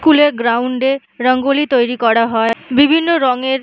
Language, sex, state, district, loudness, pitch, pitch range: Bengali, female, West Bengal, Malda, -14 LUFS, 255 Hz, 240-280 Hz